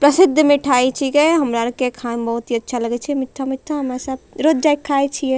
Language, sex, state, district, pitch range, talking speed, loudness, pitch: Angika, female, Bihar, Bhagalpur, 250-290 Hz, 235 wpm, -18 LUFS, 270 Hz